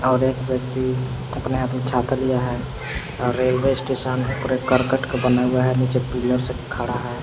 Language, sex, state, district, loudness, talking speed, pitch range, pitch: Hindi, male, Jharkhand, Palamu, -22 LUFS, 185 wpm, 125-130 Hz, 130 Hz